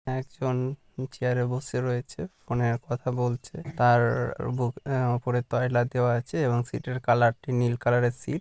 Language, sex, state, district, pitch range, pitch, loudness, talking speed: Bengali, male, West Bengal, Purulia, 120-130 Hz, 125 Hz, -27 LUFS, 185 wpm